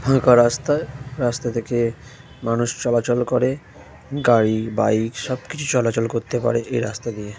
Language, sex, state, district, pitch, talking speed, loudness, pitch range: Bengali, male, West Bengal, Jhargram, 120 Hz, 130 wpm, -21 LUFS, 115-130 Hz